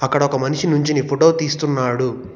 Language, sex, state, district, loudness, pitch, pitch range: Telugu, male, Telangana, Hyderabad, -18 LUFS, 140 Hz, 130-150 Hz